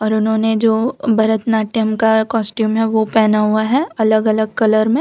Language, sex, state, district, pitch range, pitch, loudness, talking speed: Hindi, female, Gujarat, Valsad, 220-225 Hz, 220 Hz, -15 LUFS, 165 wpm